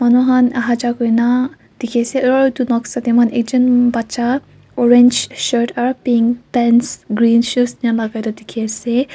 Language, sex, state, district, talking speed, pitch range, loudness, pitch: Nagamese, female, Nagaland, Kohima, 175 wpm, 235-250 Hz, -15 LUFS, 240 Hz